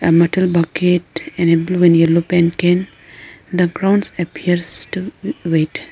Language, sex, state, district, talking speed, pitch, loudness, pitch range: English, female, Arunachal Pradesh, Lower Dibang Valley, 160 wpm, 170 Hz, -16 LUFS, 165-180 Hz